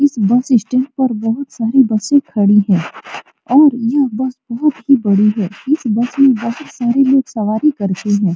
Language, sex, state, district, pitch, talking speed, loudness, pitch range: Hindi, female, Bihar, Supaul, 240 Hz, 170 wpm, -14 LUFS, 210-270 Hz